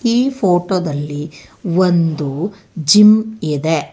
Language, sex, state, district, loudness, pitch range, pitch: Kannada, female, Karnataka, Bangalore, -15 LUFS, 150-200 Hz, 175 Hz